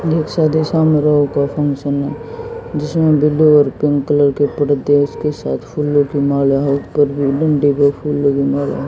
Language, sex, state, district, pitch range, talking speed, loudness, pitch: Hindi, female, Haryana, Jhajjar, 140-150 Hz, 150 wpm, -15 LUFS, 145 Hz